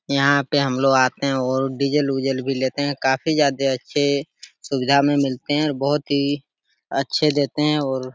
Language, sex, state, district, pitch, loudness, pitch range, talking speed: Hindi, male, Uttar Pradesh, Jalaun, 140 Hz, -20 LUFS, 135-145 Hz, 200 wpm